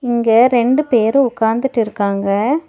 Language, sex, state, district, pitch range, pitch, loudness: Tamil, female, Tamil Nadu, Nilgiris, 220-265 Hz, 235 Hz, -15 LUFS